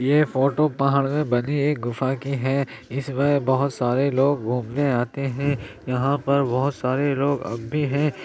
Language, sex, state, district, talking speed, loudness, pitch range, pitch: Hindi, male, Uttar Pradesh, Jyotiba Phule Nagar, 175 wpm, -23 LUFS, 125-145 Hz, 140 Hz